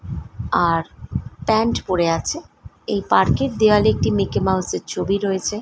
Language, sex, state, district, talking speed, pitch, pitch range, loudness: Bengali, female, West Bengal, Malda, 160 wpm, 190 Hz, 170-210 Hz, -20 LUFS